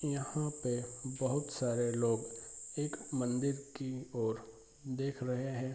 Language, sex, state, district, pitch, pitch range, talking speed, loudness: Hindi, male, Bihar, Bhagalpur, 130 Hz, 120-140 Hz, 125 wpm, -37 LUFS